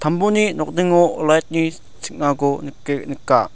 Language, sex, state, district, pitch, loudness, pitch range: Garo, male, Meghalaya, South Garo Hills, 155 Hz, -18 LUFS, 145-175 Hz